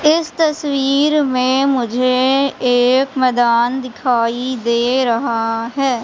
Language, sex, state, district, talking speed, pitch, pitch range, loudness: Hindi, female, Madhya Pradesh, Katni, 100 wpm, 255 Hz, 240-275 Hz, -16 LUFS